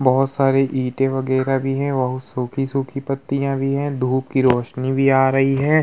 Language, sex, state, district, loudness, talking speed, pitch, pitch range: Hindi, male, Uttar Pradesh, Hamirpur, -19 LUFS, 195 wpm, 135 Hz, 130-135 Hz